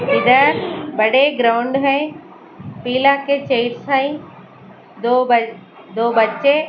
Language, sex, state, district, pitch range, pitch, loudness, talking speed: Hindi, female, Maharashtra, Mumbai Suburban, 235-280 Hz, 255 Hz, -16 LUFS, 115 wpm